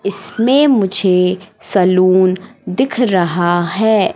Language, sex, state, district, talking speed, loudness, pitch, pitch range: Hindi, female, Madhya Pradesh, Katni, 85 wpm, -14 LUFS, 195 Hz, 185-220 Hz